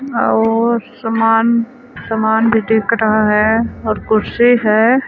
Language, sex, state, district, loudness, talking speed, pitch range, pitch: Chhattisgarhi, female, Chhattisgarh, Sarguja, -14 LUFS, 130 wpm, 220-235 Hz, 225 Hz